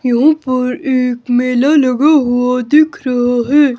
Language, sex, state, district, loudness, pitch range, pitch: Hindi, male, Himachal Pradesh, Shimla, -13 LUFS, 250-290 Hz, 255 Hz